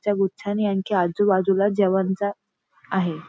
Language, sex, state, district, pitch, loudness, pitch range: Marathi, female, Maharashtra, Nagpur, 195 Hz, -22 LUFS, 190-205 Hz